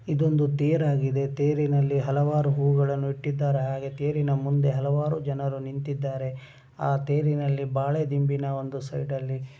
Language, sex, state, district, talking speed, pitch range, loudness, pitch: Kannada, male, Karnataka, Raichur, 115 wpm, 135-145 Hz, -26 LUFS, 140 Hz